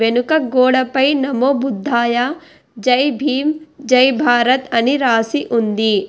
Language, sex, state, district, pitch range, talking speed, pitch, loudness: Telugu, female, Telangana, Hyderabad, 235-275 Hz, 120 wpm, 255 Hz, -15 LUFS